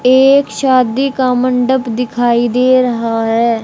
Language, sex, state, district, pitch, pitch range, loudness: Hindi, male, Haryana, Rohtak, 250 Hz, 235-260 Hz, -12 LUFS